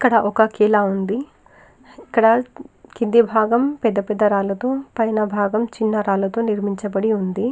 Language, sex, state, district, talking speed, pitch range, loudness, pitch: Telugu, female, Telangana, Karimnagar, 120 wpm, 205-230 Hz, -19 LUFS, 220 Hz